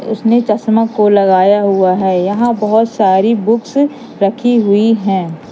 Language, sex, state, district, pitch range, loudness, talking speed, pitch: Hindi, female, Madhya Pradesh, Katni, 195-230 Hz, -12 LUFS, 140 wpm, 210 Hz